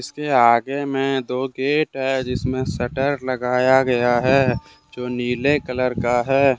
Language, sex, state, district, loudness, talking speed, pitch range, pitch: Hindi, male, Jharkhand, Deoghar, -20 LUFS, 155 wpm, 125-135 Hz, 130 Hz